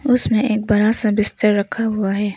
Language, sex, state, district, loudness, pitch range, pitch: Hindi, female, Arunachal Pradesh, Longding, -16 LUFS, 205-225 Hz, 215 Hz